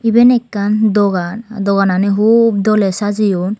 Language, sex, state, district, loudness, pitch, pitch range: Chakma, female, Tripura, Dhalai, -13 LUFS, 205 Hz, 200-225 Hz